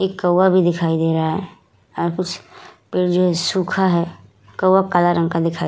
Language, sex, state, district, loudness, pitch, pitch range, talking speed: Hindi, female, Uttar Pradesh, Budaun, -18 LUFS, 175 Hz, 170-185 Hz, 210 wpm